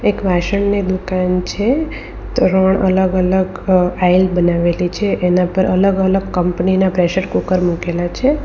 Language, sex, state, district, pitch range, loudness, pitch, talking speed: Gujarati, female, Gujarat, Valsad, 180-190 Hz, -15 LUFS, 185 Hz, 140 wpm